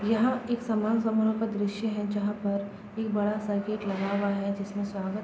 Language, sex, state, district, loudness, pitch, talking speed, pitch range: Hindi, female, Bihar, Gopalganj, -29 LUFS, 205 Hz, 215 wpm, 200-220 Hz